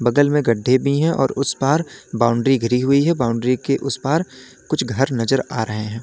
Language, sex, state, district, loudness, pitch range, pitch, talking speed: Hindi, male, Uttar Pradesh, Lalitpur, -19 LUFS, 120-140 Hz, 130 Hz, 220 wpm